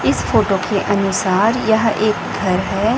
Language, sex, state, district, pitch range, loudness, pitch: Hindi, female, Chhattisgarh, Raipur, 195-220 Hz, -16 LUFS, 205 Hz